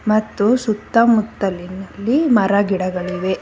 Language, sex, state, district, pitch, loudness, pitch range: Kannada, female, Karnataka, Bangalore, 205 Hz, -17 LUFS, 190-230 Hz